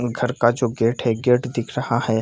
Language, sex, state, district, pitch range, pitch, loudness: Hindi, male, Bihar, Purnia, 115-125 Hz, 120 Hz, -21 LUFS